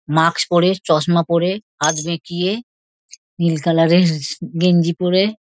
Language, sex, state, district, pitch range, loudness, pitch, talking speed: Bengali, female, West Bengal, Dakshin Dinajpur, 165-180 Hz, -17 LUFS, 170 Hz, 120 wpm